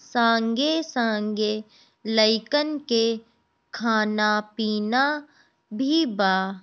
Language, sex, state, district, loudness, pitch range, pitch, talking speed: Bhojpuri, female, Bihar, Gopalganj, -23 LUFS, 215-265 Hz, 225 Hz, 70 wpm